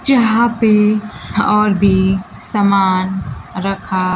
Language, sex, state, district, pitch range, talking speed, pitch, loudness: Hindi, female, Bihar, Kaimur, 190-215 Hz, 85 wpm, 200 Hz, -15 LUFS